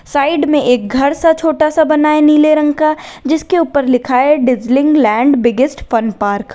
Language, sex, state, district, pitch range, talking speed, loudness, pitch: Hindi, female, Uttar Pradesh, Lalitpur, 250-305 Hz, 200 wpm, -12 LUFS, 290 Hz